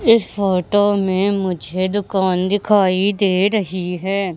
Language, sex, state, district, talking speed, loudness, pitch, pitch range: Hindi, female, Madhya Pradesh, Katni, 125 wpm, -17 LUFS, 195 Hz, 185-205 Hz